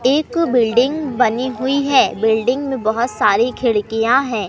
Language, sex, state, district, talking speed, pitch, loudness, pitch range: Hindi, male, Madhya Pradesh, Katni, 145 wpm, 250 Hz, -16 LUFS, 225-275 Hz